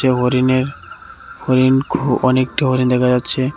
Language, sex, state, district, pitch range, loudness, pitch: Bengali, male, Tripura, West Tripura, 130-135 Hz, -16 LUFS, 130 Hz